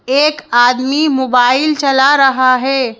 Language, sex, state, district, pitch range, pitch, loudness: Hindi, female, Madhya Pradesh, Bhopal, 255-280 Hz, 265 Hz, -11 LUFS